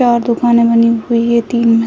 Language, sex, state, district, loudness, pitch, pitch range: Hindi, female, Bihar, Sitamarhi, -12 LUFS, 235 Hz, 230-235 Hz